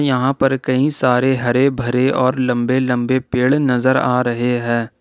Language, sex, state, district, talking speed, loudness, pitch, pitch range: Hindi, male, Jharkhand, Ranchi, 170 wpm, -16 LUFS, 130 Hz, 125-130 Hz